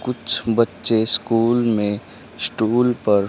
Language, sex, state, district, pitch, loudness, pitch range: Hindi, male, Haryana, Charkhi Dadri, 115 Hz, -17 LUFS, 105-120 Hz